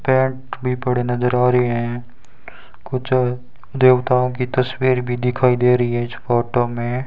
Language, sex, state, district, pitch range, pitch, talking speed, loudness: Hindi, male, Rajasthan, Bikaner, 120-130 Hz, 125 Hz, 160 wpm, -19 LUFS